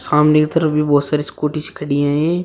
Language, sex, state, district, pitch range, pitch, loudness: Hindi, male, Uttar Pradesh, Shamli, 145-155 Hz, 150 Hz, -16 LUFS